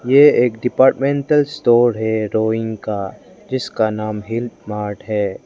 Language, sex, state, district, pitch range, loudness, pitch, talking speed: Hindi, male, Arunachal Pradesh, Lower Dibang Valley, 110-130 Hz, -17 LUFS, 115 Hz, 130 wpm